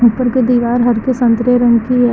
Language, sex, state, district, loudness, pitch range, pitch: Hindi, female, Uttar Pradesh, Lucknow, -12 LUFS, 235-250 Hz, 245 Hz